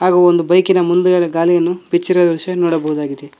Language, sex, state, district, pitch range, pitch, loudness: Kannada, male, Karnataka, Koppal, 165-180 Hz, 175 Hz, -14 LUFS